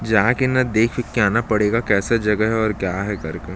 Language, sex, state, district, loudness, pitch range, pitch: Hindi, male, Chhattisgarh, Jashpur, -19 LUFS, 100-115 Hz, 110 Hz